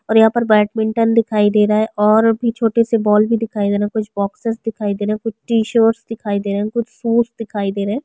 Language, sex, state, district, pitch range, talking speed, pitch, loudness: Hindi, female, Chhattisgarh, Sukma, 210-230 Hz, 255 wpm, 220 Hz, -17 LUFS